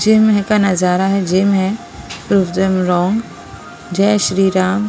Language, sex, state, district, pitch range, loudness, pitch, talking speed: Hindi, female, Punjab, Pathankot, 185-205 Hz, -15 LUFS, 195 Hz, 135 wpm